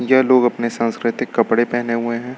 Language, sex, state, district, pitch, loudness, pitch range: Hindi, male, Uttar Pradesh, Lucknow, 120 Hz, -18 LUFS, 115-125 Hz